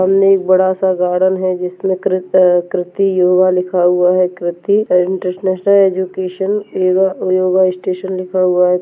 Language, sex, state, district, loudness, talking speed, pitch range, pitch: Hindi, male, Chhattisgarh, Balrampur, -14 LUFS, 155 wpm, 180-190 Hz, 185 Hz